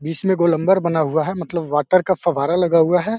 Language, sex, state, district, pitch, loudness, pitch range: Hindi, male, Uttar Pradesh, Deoria, 170 Hz, -18 LUFS, 160-185 Hz